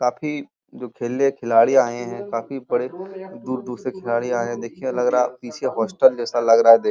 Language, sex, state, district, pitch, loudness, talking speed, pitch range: Hindi, male, Uttar Pradesh, Muzaffarnagar, 125 Hz, -21 LUFS, 210 wpm, 120-135 Hz